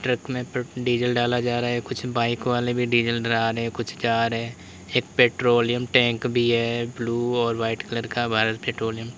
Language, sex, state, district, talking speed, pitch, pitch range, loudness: Hindi, male, Uttar Pradesh, Lalitpur, 210 wpm, 120 Hz, 115-120 Hz, -23 LUFS